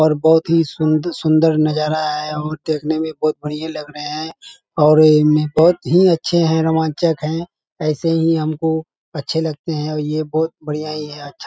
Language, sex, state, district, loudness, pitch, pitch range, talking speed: Hindi, male, Bihar, Kishanganj, -17 LUFS, 155 Hz, 150-160 Hz, 190 wpm